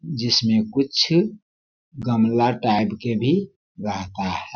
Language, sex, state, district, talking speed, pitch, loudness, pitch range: Hindi, male, Bihar, Sitamarhi, 105 wpm, 120 Hz, -21 LUFS, 110-140 Hz